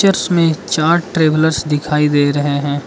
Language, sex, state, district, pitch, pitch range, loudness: Hindi, male, Arunachal Pradesh, Lower Dibang Valley, 155 Hz, 145-165 Hz, -15 LUFS